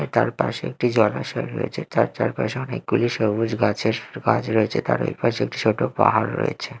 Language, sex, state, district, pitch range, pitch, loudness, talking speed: Bengali, male, Odisha, Malkangiri, 105-115 Hz, 110 Hz, -22 LUFS, 160 wpm